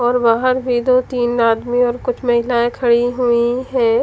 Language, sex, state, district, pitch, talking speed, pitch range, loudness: Hindi, female, Punjab, Fazilka, 245 Hz, 180 wpm, 240-255 Hz, -16 LUFS